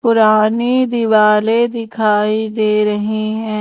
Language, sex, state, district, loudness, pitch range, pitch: Hindi, female, Madhya Pradesh, Umaria, -14 LUFS, 215-230 Hz, 215 Hz